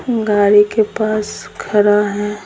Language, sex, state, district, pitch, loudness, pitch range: Hindi, female, Bihar, Patna, 210 Hz, -14 LUFS, 205-215 Hz